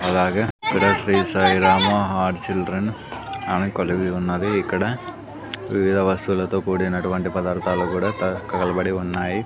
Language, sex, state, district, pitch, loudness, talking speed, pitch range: Telugu, male, Andhra Pradesh, Sri Satya Sai, 95 Hz, -21 LUFS, 115 wpm, 90-95 Hz